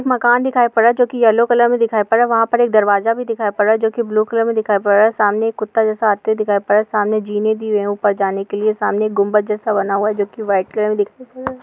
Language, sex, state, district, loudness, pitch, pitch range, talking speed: Hindi, female, Bihar, Bhagalpur, -16 LUFS, 215 Hz, 205-230 Hz, 315 wpm